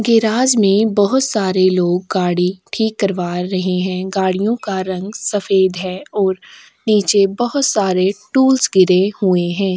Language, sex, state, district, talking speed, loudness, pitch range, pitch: Hindi, female, Uttar Pradesh, Etah, 140 wpm, -16 LUFS, 185-215 Hz, 195 Hz